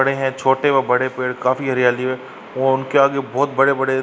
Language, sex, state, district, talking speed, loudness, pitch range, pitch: Hindi, male, Uttar Pradesh, Varanasi, 225 wpm, -18 LUFS, 130-135 Hz, 135 Hz